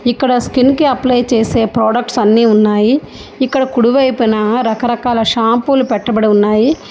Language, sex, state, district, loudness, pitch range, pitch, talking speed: Telugu, female, Telangana, Hyderabad, -12 LUFS, 225-255 Hz, 240 Hz, 120 wpm